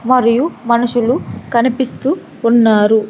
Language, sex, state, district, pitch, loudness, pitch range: Telugu, female, Andhra Pradesh, Sri Satya Sai, 235 Hz, -14 LUFS, 230-255 Hz